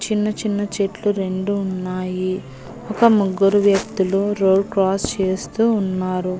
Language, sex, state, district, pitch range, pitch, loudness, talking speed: Telugu, female, Andhra Pradesh, Annamaya, 185-205 Hz, 195 Hz, -19 LUFS, 110 wpm